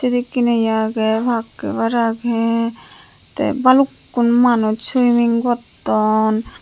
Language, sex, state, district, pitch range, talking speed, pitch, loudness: Chakma, female, Tripura, Unakoti, 225-245 Hz, 100 wpm, 235 Hz, -17 LUFS